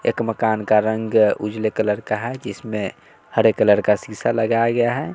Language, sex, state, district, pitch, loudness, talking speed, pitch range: Hindi, male, Bihar, West Champaran, 110 Hz, -20 LUFS, 175 wpm, 105-115 Hz